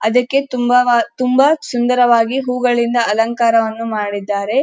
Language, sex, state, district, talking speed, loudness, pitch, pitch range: Kannada, female, Karnataka, Dharwad, 80 wpm, -15 LUFS, 240 Hz, 225-250 Hz